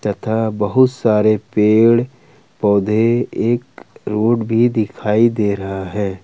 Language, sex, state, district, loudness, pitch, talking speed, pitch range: Hindi, male, Jharkhand, Ranchi, -16 LUFS, 110 Hz, 115 wpm, 105-120 Hz